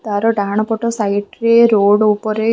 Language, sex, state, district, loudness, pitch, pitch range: Odia, female, Odisha, Khordha, -14 LUFS, 215 Hz, 205-225 Hz